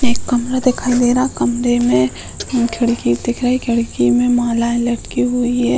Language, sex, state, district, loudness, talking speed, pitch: Hindi, female, Uttar Pradesh, Hamirpur, -16 LUFS, 175 wpm, 235 Hz